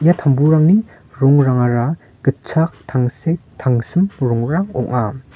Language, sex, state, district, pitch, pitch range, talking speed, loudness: Garo, male, Meghalaya, North Garo Hills, 135 Hz, 125-160 Hz, 90 wpm, -16 LUFS